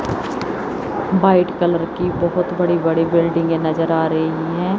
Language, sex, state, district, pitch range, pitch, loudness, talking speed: Hindi, female, Chandigarh, Chandigarh, 165-180 Hz, 170 Hz, -18 LUFS, 125 wpm